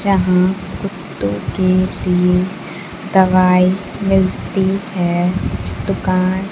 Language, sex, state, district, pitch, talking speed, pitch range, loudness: Hindi, female, Bihar, Kaimur, 185 Hz, 75 wpm, 180-190 Hz, -16 LUFS